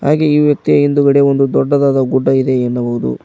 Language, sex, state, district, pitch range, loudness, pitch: Kannada, male, Karnataka, Koppal, 130-145 Hz, -13 LUFS, 140 Hz